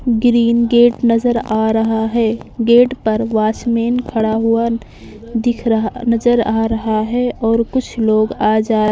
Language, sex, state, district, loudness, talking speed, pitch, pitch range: Hindi, female, Maharashtra, Mumbai Suburban, -15 LUFS, 155 wpm, 230 Hz, 220-235 Hz